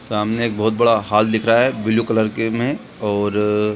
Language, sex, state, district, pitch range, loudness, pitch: Hindi, male, Bihar, Saran, 105-115 Hz, -18 LUFS, 110 Hz